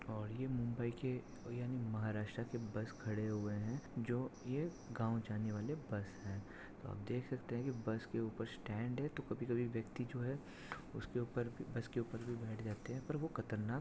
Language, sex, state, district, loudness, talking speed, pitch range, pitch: Hindi, male, Maharashtra, Sindhudurg, -44 LUFS, 210 wpm, 110-125 Hz, 120 Hz